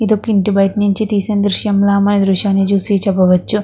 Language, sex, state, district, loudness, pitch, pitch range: Telugu, female, Andhra Pradesh, Krishna, -13 LUFS, 200 Hz, 195-205 Hz